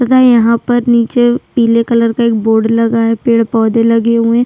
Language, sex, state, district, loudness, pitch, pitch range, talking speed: Hindi, female, Chhattisgarh, Sukma, -11 LUFS, 230 Hz, 230-240 Hz, 215 wpm